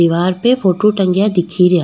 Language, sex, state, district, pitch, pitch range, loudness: Rajasthani, female, Rajasthan, Nagaur, 185 Hz, 175-200 Hz, -14 LUFS